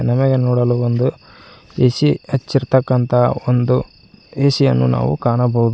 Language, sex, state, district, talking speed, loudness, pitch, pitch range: Kannada, male, Karnataka, Koppal, 105 wpm, -16 LUFS, 125 Hz, 120-130 Hz